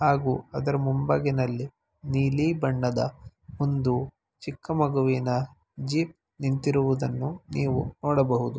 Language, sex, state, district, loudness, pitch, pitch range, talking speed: Kannada, male, Karnataka, Mysore, -27 LUFS, 135 Hz, 130-145 Hz, 85 wpm